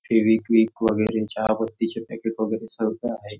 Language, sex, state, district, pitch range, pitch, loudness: Marathi, male, Maharashtra, Nagpur, 110-115 Hz, 110 Hz, -24 LUFS